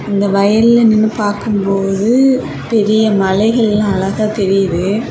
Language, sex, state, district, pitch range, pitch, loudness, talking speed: Tamil, female, Tamil Nadu, Kanyakumari, 195-220 Hz, 210 Hz, -13 LUFS, 105 wpm